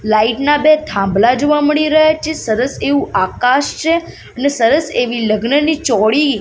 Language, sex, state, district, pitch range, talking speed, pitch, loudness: Gujarati, female, Gujarat, Gandhinagar, 230-305 Hz, 170 wpm, 280 Hz, -14 LUFS